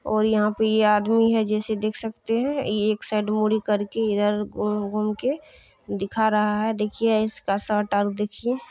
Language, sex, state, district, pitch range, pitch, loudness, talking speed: Maithili, female, Bihar, Kishanganj, 210-220 Hz, 215 Hz, -23 LUFS, 180 wpm